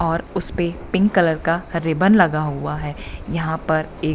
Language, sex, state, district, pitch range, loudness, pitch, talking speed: Hindi, female, Bihar, Bhagalpur, 155-175 Hz, -20 LUFS, 165 Hz, 190 wpm